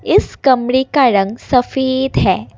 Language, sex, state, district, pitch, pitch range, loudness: Hindi, female, Assam, Kamrup Metropolitan, 260 Hz, 235-265 Hz, -14 LUFS